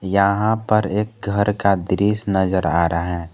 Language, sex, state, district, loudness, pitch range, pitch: Hindi, male, Jharkhand, Garhwa, -19 LUFS, 95-105 Hz, 100 Hz